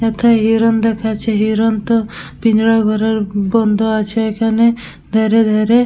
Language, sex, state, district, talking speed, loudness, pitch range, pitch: Bengali, female, West Bengal, Dakshin Dinajpur, 125 wpm, -14 LUFS, 215-225 Hz, 220 Hz